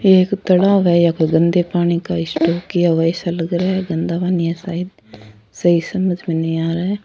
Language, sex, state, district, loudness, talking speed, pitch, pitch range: Rajasthani, female, Rajasthan, Churu, -17 LUFS, 210 wpm, 175 Hz, 165-185 Hz